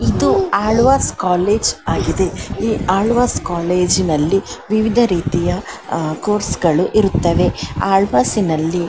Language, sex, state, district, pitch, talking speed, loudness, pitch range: Kannada, female, Karnataka, Dakshina Kannada, 180 Hz, 95 wpm, -16 LUFS, 160-210 Hz